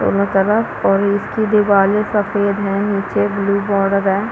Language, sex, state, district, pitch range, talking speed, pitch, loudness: Hindi, female, Chhattisgarh, Balrampur, 200-205 Hz, 155 wpm, 200 Hz, -16 LUFS